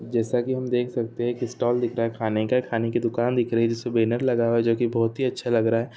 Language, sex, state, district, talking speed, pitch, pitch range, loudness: Hindi, male, Telangana, Nalgonda, 300 wpm, 120 Hz, 115-120 Hz, -24 LUFS